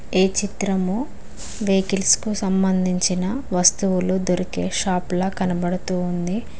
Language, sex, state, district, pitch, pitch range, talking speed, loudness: Telugu, female, Telangana, Mahabubabad, 185 Hz, 180-195 Hz, 80 wpm, -21 LUFS